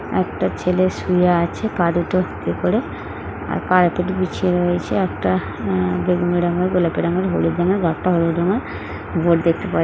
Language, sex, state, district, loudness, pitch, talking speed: Bengali, female, West Bengal, Jhargram, -19 LUFS, 170 Hz, 135 wpm